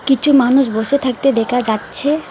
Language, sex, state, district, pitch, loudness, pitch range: Bengali, female, West Bengal, Alipurduar, 260 Hz, -14 LUFS, 245-275 Hz